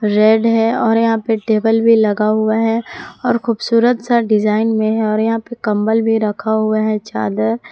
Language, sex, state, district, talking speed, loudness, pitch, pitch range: Hindi, female, Jharkhand, Palamu, 195 wpm, -15 LUFS, 220 Hz, 215-225 Hz